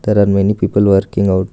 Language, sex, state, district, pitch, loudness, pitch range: English, male, Karnataka, Bangalore, 100 Hz, -13 LUFS, 95-100 Hz